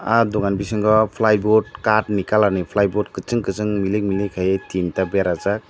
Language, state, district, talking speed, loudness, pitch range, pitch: Kokborok, Tripura, Dhalai, 190 wpm, -19 LUFS, 95-110 Hz, 100 Hz